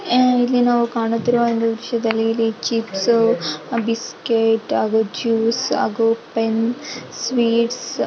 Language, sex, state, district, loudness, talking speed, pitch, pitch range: Kannada, female, Karnataka, Shimoga, -19 LUFS, 95 wpm, 230 Hz, 225-240 Hz